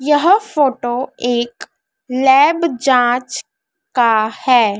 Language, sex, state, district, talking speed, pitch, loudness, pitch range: Hindi, female, Madhya Pradesh, Dhar, 85 wpm, 265 Hz, -15 LUFS, 245-335 Hz